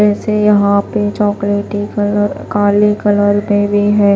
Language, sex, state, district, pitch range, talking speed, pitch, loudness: Hindi, female, Maharashtra, Washim, 205-210 Hz, 145 wpm, 205 Hz, -13 LUFS